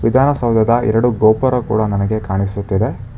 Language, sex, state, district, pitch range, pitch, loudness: Kannada, male, Karnataka, Bangalore, 105-120 Hz, 110 Hz, -15 LUFS